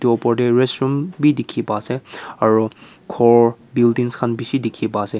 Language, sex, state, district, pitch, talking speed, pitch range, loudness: Nagamese, male, Nagaland, Kohima, 120 Hz, 185 wpm, 115-125 Hz, -18 LUFS